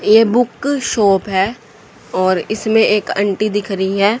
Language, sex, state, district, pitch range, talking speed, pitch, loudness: Hindi, female, Haryana, Charkhi Dadri, 195-225 Hz, 155 wpm, 210 Hz, -15 LUFS